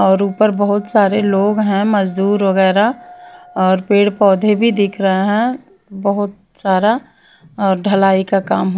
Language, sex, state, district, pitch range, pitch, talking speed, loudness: Hindi, female, Bihar, West Champaran, 195-210 Hz, 200 Hz, 150 wpm, -15 LUFS